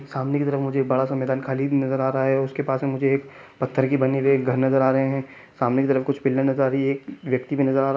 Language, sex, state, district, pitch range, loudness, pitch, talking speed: Hindi, male, Chhattisgarh, Kabirdham, 130-135 Hz, -22 LUFS, 135 Hz, 325 wpm